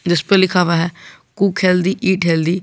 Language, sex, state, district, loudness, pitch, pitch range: Hindi, male, Jharkhand, Garhwa, -16 LUFS, 180 Hz, 170-190 Hz